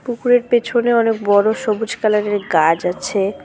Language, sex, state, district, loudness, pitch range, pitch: Bengali, female, West Bengal, Cooch Behar, -16 LUFS, 200-235 Hz, 215 Hz